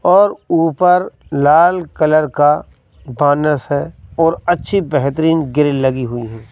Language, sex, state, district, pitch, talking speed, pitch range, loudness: Hindi, male, Madhya Pradesh, Katni, 150 Hz, 130 wpm, 145-165 Hz, -15 LUFS